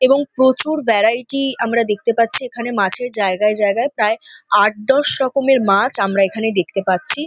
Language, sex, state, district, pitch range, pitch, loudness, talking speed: Bengali, female, West Bengal, North 24 Parganas, 205-265 Hz, 230 Hz, -16 LUFS, 155 wpm